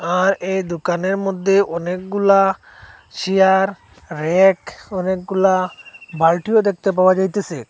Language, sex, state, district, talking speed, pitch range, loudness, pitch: Bengali, male, Assam, Hailakandi, 95 wpm, 180-195 Hz, -17 LUFS, 190 Hz